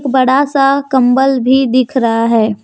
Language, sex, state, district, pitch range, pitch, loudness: Hindi, female, Jharkhand, Deoghar, 240-270 Hz, 260 Hz, -11 LUFS